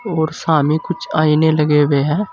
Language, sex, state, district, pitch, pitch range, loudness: Hindi, male, Uttar Pradesh, Saharanpur, 160 Hz, 150-165 Hz, -16 LUFS